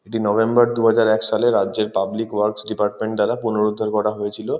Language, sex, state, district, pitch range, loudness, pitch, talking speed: Bengali, male, West Bengal, Kolkata, 105-110 Hz, -19 LUFS, 110 Hz, 170 wpm